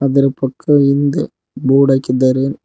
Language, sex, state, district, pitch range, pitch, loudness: Kannada, male, Karnataka, Koppal, 130-140 Hz, 135 Hz, -14 LUFS